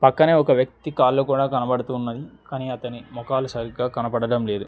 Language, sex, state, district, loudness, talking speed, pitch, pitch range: Telugu, male, Telangana, Mahabubabad, -22 LUFS, 165 wpm, 125 Hz, 120-135 Hz